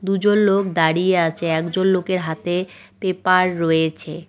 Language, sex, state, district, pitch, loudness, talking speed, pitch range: Bengali, female, West Bengal, Cooch Behar, 180 Hz, -19 LUFS, 125 wpm, 160-185 Hz